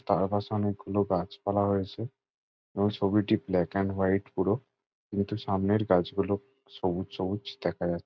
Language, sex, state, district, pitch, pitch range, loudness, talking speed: Bengali, male, West Bengal, Jalpaiguri, 100 Hz, 95-105 Hz, -29 LUFS, 140 wpm